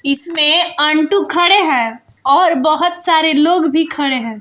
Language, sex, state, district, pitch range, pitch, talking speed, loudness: Hindi, female, Bihar, West Champaran, 285-345 Hz, 315 Hz, 150 wpm, -13 LUFS